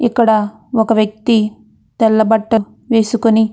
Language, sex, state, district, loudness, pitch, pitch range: Telugu, female, Andhra Pradesh, Anantapur, -14 LUFS, 225 Hz, 215-230 Hz